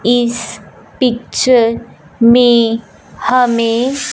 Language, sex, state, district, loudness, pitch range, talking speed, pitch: Hindi, male, Punjab, Fazilka, -13 LUFS, 230-250 Hz, 60 wpm, 240 Hz